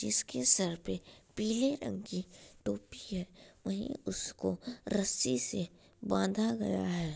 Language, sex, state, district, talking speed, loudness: Hindi, female, Bihar, Darbhanga, 125 wpm, -34 LUFS